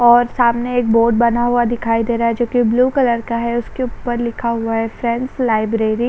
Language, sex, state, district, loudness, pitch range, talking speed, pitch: Hindi, female, Maharashtra, Chandrapur, -17 LUFS, 230-240 Hz, 235 wpm, 235 Hz